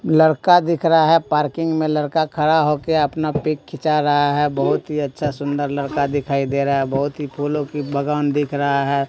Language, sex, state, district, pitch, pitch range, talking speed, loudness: Hindi, male, Bihar, Katihar, 150 Hz, 140-155 Hz, 210 wpm, -19 LUFS